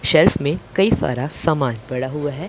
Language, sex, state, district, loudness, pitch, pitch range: Hindi, male, Punjab, Pathankot, -19 LUFS, 135 Hz, 125-150 Hz